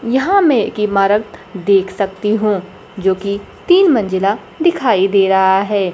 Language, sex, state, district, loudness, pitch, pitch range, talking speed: Hindi, female, Bihar, Kaimur, -14 LUFS, 200 Hz, 195-225 Hz, 150 wpm